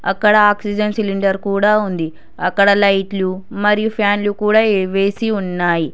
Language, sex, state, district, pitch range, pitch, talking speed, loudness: Telugu, female, Telangana, Hyderabad, 195-210 Hz, 200 Hz, 130 wpm, -16 LUFS